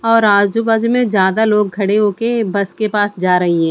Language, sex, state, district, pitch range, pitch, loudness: Hindi, female, Chandigarh, Chandigarh, 195-225 Hz, 210 Hz, -14 LUFS